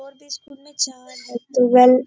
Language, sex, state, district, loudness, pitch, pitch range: Hindi, female, Bihar, Bhagalpur, -17 LUFS, 260 Hz, 250-280 Hz